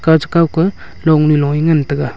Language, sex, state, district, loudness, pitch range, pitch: Wancho, male, Arunachal Pradesh, Longding, -13 LUFS, 145-165 Hz, 155 Hz